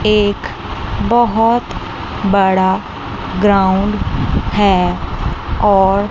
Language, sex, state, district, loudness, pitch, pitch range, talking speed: Hindi, female, Chandigarh, Chandigarh, -15 LUFS, 205 Hz, 190-210 Hz, 60 wpm